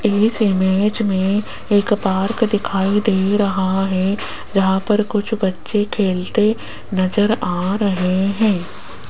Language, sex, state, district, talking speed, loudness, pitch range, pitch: Hindi, female, Rajasthan, Jaipur, 120 wpm, -18 LUFS, 190-210 Hz, 200 Hz